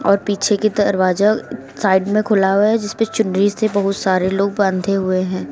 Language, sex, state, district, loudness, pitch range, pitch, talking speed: Hindi, female, Uttar Pradesh, Lucknow, -17 LUFS, 190-210 Hz, 200 Hz, 215 wpm